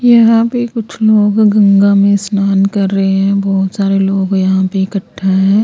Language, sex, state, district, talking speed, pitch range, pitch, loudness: Hindi, female, Chandigarh, Chandigarh, 180 wpm, 195-210 Hz, 200 Hz, -11 LUFS